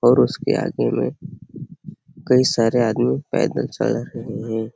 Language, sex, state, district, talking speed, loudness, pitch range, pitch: Hindi, male, Chhattisgarh, Sarguja, 140 wpm, -20 LUFS, 110-125 Hz, 115 Hz